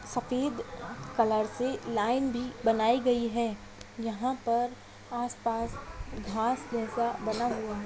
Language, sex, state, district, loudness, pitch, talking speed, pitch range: Hindi, female, Bihar, Kishanganj, -31 LUFS, 235 Hz, 120 wpm, 225-245 Hz